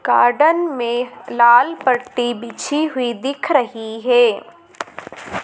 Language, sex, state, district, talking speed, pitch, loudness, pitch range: Hindi, female, Madhya Pradesh, Dhar, 100 wpm, 250 Hz, -17 LUFS, 240-295 Hz